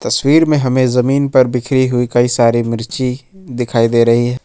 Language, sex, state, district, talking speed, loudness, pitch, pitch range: Hindi, male, Jharkhand, Ranchi, 190 wpm, -13 LUFS, 125 Hz, 120-130 Hz